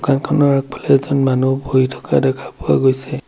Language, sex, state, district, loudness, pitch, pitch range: Assamese, male, Assam, Sonitpur, -16 LUFS, 135 Hz, 130-140 Hz